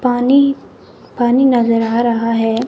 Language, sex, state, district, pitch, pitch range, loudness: Hindi, male, Himachal Pradesh, Shimla, 240 Hz, 230-255 Hz, -14 LUFS